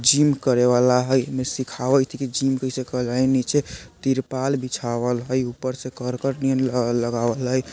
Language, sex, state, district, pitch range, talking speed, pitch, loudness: Bajjika, male, Bihar, Vaishali, 125-130 Hz, 155 wpm, 130 Hz, -22 LUFS